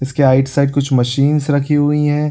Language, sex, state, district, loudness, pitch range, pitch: Hindi, male, Bihar, Supaul, -14 LUFS, 135-150 Hz, 140 Hz